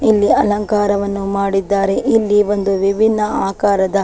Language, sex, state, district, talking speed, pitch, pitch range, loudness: Kannada, female, Karnataka, Dakshina Kannada, 105 wpm, 200 Hz, 195-210 Hz, -15 LUFS